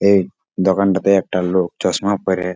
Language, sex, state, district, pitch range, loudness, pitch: Bengali, male, West Bengal, Jalpaiguri, 90-100 Hz, -17 LUFS, 95 Hz